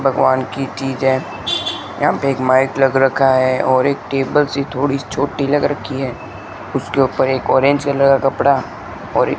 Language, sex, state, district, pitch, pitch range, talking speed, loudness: Hindi, male, Rajasthan, Bikaner, 135 Hz, 130-135 Hz, 190 wpm, -16 LUFS